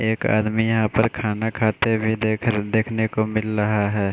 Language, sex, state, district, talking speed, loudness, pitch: Hindi, male, Bihar, West Champaran, 190 wpm, -21 LUFS, 110 Hz